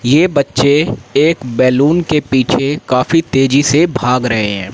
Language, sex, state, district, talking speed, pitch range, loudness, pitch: Hindi, male, Haryana, Rohtak, 140 wpm, 125-150 Hz, -13 LUFS, 135 Hz